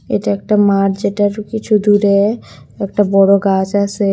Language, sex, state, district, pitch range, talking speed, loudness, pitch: Bengali, female, Tripura, West Tripura, 195-210 Hz, 145 wpm, -14 LUFS, 200 Hz